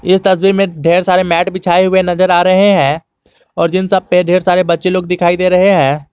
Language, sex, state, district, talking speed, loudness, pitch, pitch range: Hindi, male, Jharkhand, Garhwa, 235 wpm, -11 LUFS, 180 Hz, 175-185 Hz